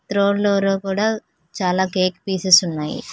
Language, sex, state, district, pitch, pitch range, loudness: Telugu, female, Telangana, Hyderabad, 190 Hz, 185-200 Hz, -19 LUFS